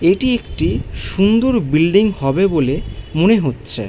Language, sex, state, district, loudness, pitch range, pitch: Bengali, male, West Bengal, Malda, -16 LUFS, 135-210 Hz, 170 Hz